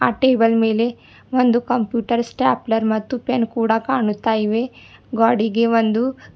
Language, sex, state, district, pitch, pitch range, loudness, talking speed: Kannada, female, Karnataka, Bidar, 230 Hz, 225-245 Hz, -19 LUFS, 125 wpm